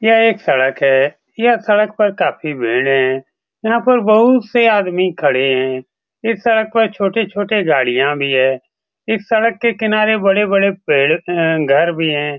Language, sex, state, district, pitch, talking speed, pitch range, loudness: Hindi, male, Bihar, Saran, 195 Hz, 165 wpm, 140-220 Hz, -15 LUFS